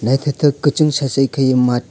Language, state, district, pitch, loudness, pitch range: Kokborok, Tripura, West Tripura, 135 Hz, -16 LUFS, 130-145 Hz